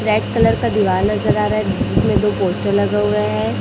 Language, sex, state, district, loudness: Hindi, female, Chhattisgarh, Raipur, -17 LUFS